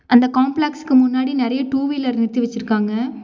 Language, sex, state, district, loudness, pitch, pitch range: Tamil, female, Tamil Nadu, Nilgiris, -18 LUFS, 255 Hz, 240-270 Hz